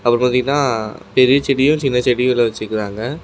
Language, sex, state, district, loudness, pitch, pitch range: Tamil, male, Tamil Nadu, Namakkal, -16 LUFS, 125 Hz, 115-135 Hz